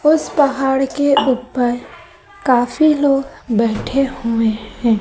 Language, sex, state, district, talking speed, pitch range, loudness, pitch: Hindi, female, Madhya Pradesh, Dhar, 105 wpm, 240-285 Hz, -17 LUFS, 265 Hz